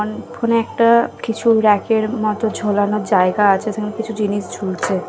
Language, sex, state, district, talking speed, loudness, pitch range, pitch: Bengali, female, Odisha, Khordha, 155 wpm, -17 LUFS, 205-225 Hz, 215 Hz